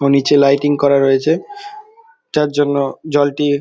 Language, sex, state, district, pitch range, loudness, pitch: Bengali, male, West Bengal, Dakshin Dinajpur, 140-160 Hz, -15 LUFS, 145 Hz